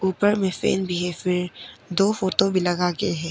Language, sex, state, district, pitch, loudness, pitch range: Hindi, female, Arunachal Pradesh, Papum Pare, 185 Hz, -23 LUFS, 180-200 Hz